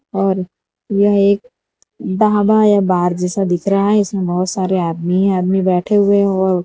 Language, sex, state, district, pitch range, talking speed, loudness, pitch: Hindi, female, Gujarat, Valsad, 185-200 Hz, 190 wpm, -15 LUFS, 195 Hz